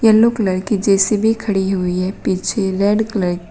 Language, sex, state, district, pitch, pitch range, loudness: Hindi, female, Uttar Pradesh, Shamli, 195 Hz, 185-215 Hz, -17 LUFS